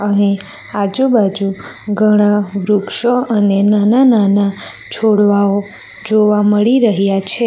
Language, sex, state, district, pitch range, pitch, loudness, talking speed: Gujarati, female, Gujarat, Valsad, 200-215 Hz, 205 Hz, -13 LUFS, 90 wpm